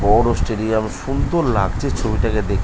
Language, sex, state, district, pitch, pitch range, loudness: Bengali, male, West Bengal, North 24 Parganas, 110 Hz, 105-120 Hz, -19 LUFS